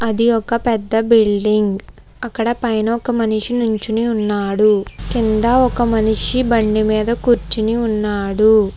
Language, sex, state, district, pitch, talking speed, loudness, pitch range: Telugu, female, Telangana, Hyderabad, 225 Hz, 115 wpm, -16 LUFS, 215-235 Hz